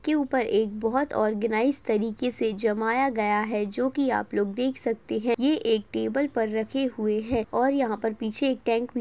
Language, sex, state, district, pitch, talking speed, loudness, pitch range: Hindi, female, Maharashtra, Nagpur, 230 Hz, 200 wpm, -26 LUFS, 220-260 Hz